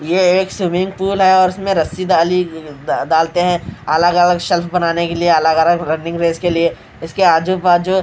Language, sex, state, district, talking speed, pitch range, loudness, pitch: Hindi, male, Bihar, Katihar, 195 wpm, 165-185 Hz, -15 LUFS, 175 Hz